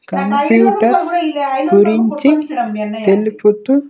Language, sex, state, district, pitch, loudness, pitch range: Telugu, male, Andhra Pradesh, Sri Satya Sai, 230 Hz, -14 LUFS, 215-285 Hz